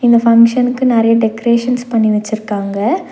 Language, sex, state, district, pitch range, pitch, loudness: Tamil, female, Tamil Nadu, Nilgiris, 220-245 Hz, 230 Hz, -13 LUFS